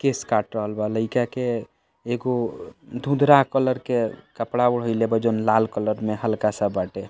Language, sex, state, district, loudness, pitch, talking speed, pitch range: Bhojpuri, male, Bihar, East Champaran, -23 LUFS, 115 Hz, 170 wpm, 110-125 Hz